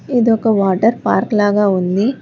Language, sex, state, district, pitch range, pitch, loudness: Telugu, female, Telangana, Hyderabad, 195-230 Hz, 210 Hz, -15 LUFS